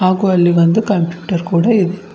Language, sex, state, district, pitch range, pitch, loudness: Kannada, female, Karnataka, Bidar, 175-200 Hz, 185 Hz, -14 LUFS